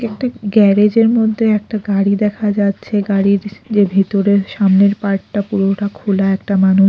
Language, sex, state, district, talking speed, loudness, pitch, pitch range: Bengali, female, Odisha, Khordha, 140 wpm, -14 LUFS, 205 Hz, 195-210 Hz